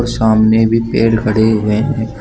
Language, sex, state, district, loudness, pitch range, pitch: Hindi, male, Uttar Pradesh, Shamli, -13 LUFS, 110-115 Hz, 110 Hz